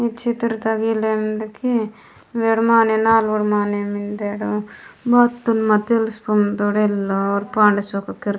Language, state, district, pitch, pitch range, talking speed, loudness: Gondi, Chhattisgarh, Sukma, 215 Hz, 205-225 Hz, 120 wpm, -19 LUFS